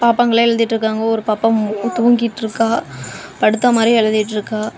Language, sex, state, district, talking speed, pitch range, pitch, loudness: Tamil, female, Tamil Nadu, Namakkal, 115 wpm, 215-235 Hz, 225 Hz, -16 LUFS